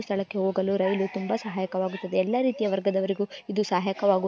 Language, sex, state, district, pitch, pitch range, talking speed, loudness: Kannada, female, Karnataka, Gulbarga, 195 Hz, 190-205 Hz, 155 wpm, -27 LUFS